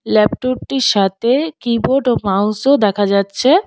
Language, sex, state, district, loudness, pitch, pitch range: Bengali, female, West Bengal, Alipurduar, -15 LUFS, 235 Hz, 205-270 Hz